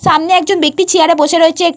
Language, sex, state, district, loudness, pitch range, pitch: Bengali, female, Jharkhand, Jamtara, -10 LUFS, 320-365 Hz, 335 Hz